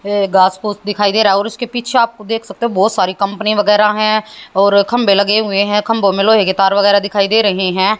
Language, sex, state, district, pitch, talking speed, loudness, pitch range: Hindi, female, Haryana, Jhajjar, 205 Hz, 255 wpm, -13 LUFS, 200-215 Hz